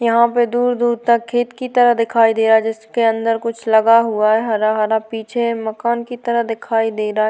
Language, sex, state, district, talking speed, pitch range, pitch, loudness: Hindi, female, Uttar Pradesh, Varanasi, 245 wpm, 220-235 Hz, 230 Hz, -16 LUFS